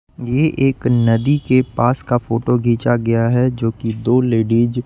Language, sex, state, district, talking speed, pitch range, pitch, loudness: Hindi, male, Bihar, West Champaran, 185 wpm, 115-130 Hz, 120 Hz, -16 LUFS